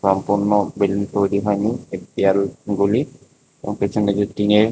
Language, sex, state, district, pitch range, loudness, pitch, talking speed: Bengali, male, Tripura, West Tripura, 100-105 Hz, -20 LUFS, 100 Hz, 155 wpm